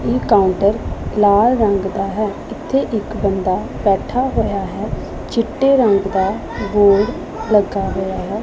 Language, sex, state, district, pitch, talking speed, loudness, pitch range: Punjabi, female, Punjab, Pathankot, 205 Hz, 135 wpm, -17 LUFS, 195-230 Hz